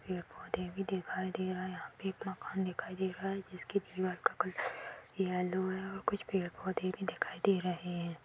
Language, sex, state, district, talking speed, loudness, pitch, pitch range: Hindi, female, Uttar Pradesh, Jyotiba Phule Nagar, 225 wpm, -37 LUFS, 185 Hz, 180-195 Hz